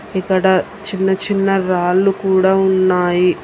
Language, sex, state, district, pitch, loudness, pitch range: Telugu, female, Telangana, Hyderabad, 190 Hz, -15 LUFS, 185-195 Hz